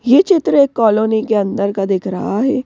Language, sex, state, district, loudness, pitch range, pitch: Hindi, female, Madhya Pradesh, Bhopal, -15 LUFS, 200-265 Hz, 220 Hz